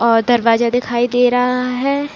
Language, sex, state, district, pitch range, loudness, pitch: Hindi, female, Chhattisgarh, Raigarh, 235-250 Hz, -15 LUFS, 245 Hz